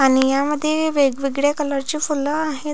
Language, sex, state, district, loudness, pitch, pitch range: Marathi, female, Maharashtra, Pune, -20 LUFS, 290 Hz, 275-300 Hz